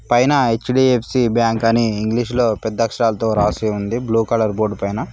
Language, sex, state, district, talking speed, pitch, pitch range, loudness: Telugu, male, Telangana, Mahabubabad, 150 wpm, 115 Hz, 110-120 Hz, -17 LUFS